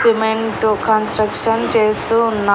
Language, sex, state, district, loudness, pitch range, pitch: Telugu, female, Andhra Pradesh, Annamaya, -16 LUFS, 215-225 Hz, 220 Hz